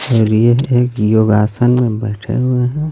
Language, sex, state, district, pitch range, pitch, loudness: Hindi, male, Jharkhand, Garhwa, 110-125 Hz, 120 Hz, -14 LUFS